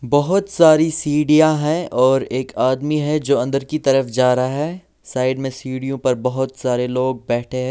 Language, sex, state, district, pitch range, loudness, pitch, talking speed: Hindi, male, Delhi, New Delhi, 130-150 Hz, -18 LUFS, 135 Hz, 185 wpm